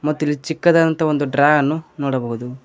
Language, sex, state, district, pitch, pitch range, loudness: Kannada, male, Karnataka, Koppal, 150 Hz, 140-160 Hz, -18 LUFS